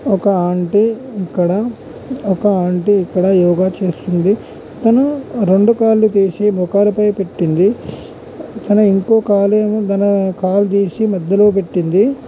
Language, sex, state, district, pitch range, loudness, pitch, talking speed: Telugu, male, Andhra Pradesh, Guntur, 185-215 Hz, -14 LUFS, 200 Hz, 110 wpm